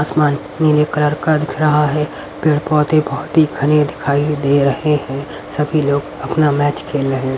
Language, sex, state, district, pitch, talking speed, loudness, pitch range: Hindi, male, Haryana, Rohtak, 150 Hz, 185 wpm, -16 LUFS, 140-150 Hz